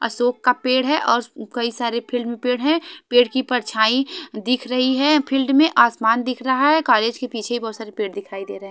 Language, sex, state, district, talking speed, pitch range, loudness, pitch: Hindi, female, Haryana, Charkhi Dadri, 225 wpm, 230-260 Hz, -19 LUFS, 245 Hz